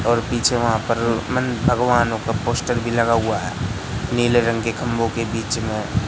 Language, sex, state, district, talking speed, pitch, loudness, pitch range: Hindi, male, Madhya Pradesh, Katni, 185 wpm, 115 Hz, -20 LUFS, 115-120 Hz